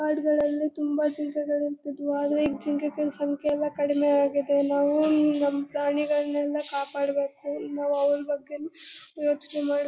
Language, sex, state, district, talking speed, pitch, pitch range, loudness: Kannada, female, Karnataka, Bellary, 130 wpm, 290 Hz, 285-295 Hz, -26 LUFS